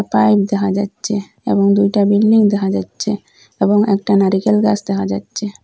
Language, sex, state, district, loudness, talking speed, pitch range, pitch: Bengali, female, Assam, Hailakandi, -15 LUFS, 150 wpm, 195-210 Hz, 200 Hz